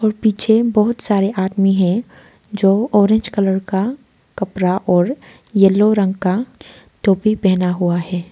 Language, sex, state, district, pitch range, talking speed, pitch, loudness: Hindi, female, Arunachal Pradesh, Lower Dibang Valley, 190-215 Hz, 135 wpm, 200 Hz, -16 LUFS